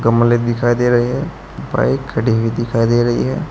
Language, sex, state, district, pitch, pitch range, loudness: Hindi, male, Uttar Pradesh, Saharanpur, 120 Hz, 115-120 Hz, -16 LUFS